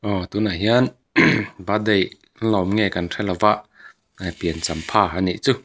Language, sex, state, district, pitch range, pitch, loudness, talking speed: Mizo, male, Mizoram, Aizawl, 90-105 Hz, 100 Hz, -20 LUFS, 150 wpm